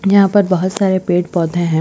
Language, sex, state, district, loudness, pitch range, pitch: Hindi, female, Chhattisgarh, Bastar, -15 LUFS, 175-195 Hz, 185 Hz